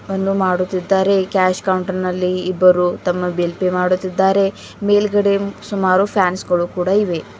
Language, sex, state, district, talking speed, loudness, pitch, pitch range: Kannada, female, Karnataka, Bidar, 130 wpm, -17 LUFS, 185 Hz, 180-195 Hz